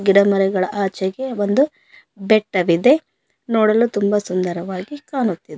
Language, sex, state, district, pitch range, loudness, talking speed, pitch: Kannada, female, Karnataka, Koppal, 190-235 Hz, -18 LUFS, 85 wpm, 205 Hz